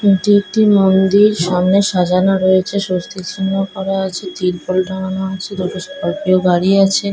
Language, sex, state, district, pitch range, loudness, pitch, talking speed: Bengali, female, West Bengal, Dakshin Dinajpur, 185-195 Hz, -15 LUFS, 190 Hz, 160 wpm